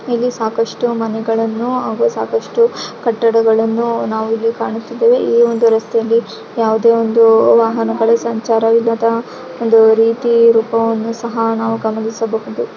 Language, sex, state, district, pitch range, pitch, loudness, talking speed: Kannada, female, Karnataka, Raichur, 225-230 Hz, 230 Hz, -14 LUFS, 110 wpm